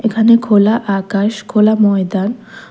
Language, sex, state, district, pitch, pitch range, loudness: Bengali, female, Tripura, West Tripura, 215 Hz, 200-225 Hz, -13 LUFS